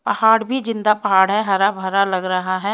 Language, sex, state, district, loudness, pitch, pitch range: Hindi, female, Himachal Pradesh, Shimla, -17 LUFS, 200 Hz, 190-215 Hz